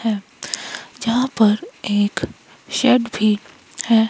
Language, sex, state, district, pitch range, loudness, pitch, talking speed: Hindi, female, Himachal Pradesh, Shimla, 210-245 Hz, -20 LUFS, 225 Hz, 100 wpm